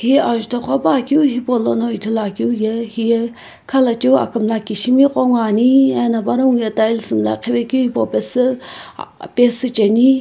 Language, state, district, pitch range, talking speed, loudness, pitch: Sumi, Nagaland, Kohima, 225-255 Hz, 135 wpm, -16 LUFS, 240 Hz